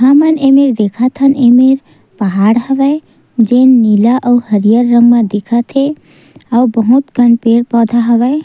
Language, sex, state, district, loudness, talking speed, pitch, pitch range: Chhattisgarhi, female, Chhattisgarh, Sukma, -10 LUFS, 135 wpm, 245 Hz, 230-270 Hz